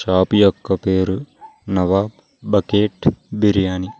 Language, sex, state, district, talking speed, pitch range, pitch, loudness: Telugu, male, Telangana, Mahabubabad, 105 wpm, 95-105 Hz, 100 Hz, -18 LUFS